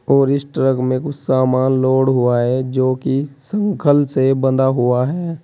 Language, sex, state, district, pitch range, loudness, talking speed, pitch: Hindi, male, Uttar Pradesh, Saharanpur, 130-140 Hz, -16 LUFS, 175 wpm, 130 Hz